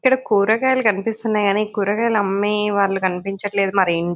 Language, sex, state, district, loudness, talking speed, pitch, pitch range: Telugu, female, Telangana, Nalgonda, -19 LUFS, 145 wpm, 205 Hz, 195-220 Hz